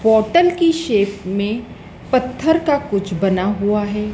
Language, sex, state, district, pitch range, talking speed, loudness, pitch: Hindi, female, Madhya Pradesh, Dhar, 200-285 Hz, 145 wpm, -17 LUFS, 210 Hz